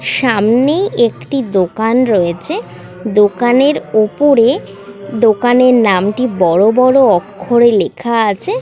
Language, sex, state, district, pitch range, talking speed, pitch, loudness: Bengali, female, West Bengal, Kolkata, 205-255 Hz, 90 wpm, 230 Hz, -12 LUFS